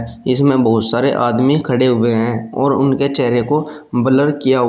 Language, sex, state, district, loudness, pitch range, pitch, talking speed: Hindi, male, Uttar Pradesh, Shamli, -15 LUFS, 120-140 Hz, 130 Hz, 165 wpm